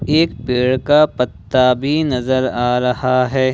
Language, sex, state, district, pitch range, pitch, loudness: Hindi, male, Jharkhand, Ranchi, 125-135 Hz, 130 Hz, -16 LUFS